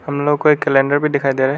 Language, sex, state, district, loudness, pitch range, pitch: Hindi, male, Arunachal Pradesh, Lower Dibang Valley, -15 LUFS, 135-145 Hz, 145 Hz